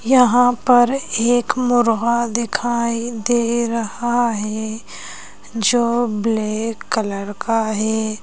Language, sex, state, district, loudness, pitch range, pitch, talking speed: Hindi, female, Madhya Pradesh, Bhopal, -18 LUFS, 220-240 Hz, 235 Hz, 95 wpm